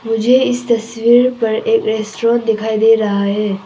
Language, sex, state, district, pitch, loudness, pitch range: Hindi, female, Arunachal Pradesh, Papum Pare, 225 Hz, -14 LUFS, 220-235 Hz